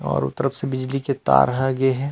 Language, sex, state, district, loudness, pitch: Chhattisgarhi, male, Chhattisgarh, Rajnandgaon, -21 LUFS, 130 Hz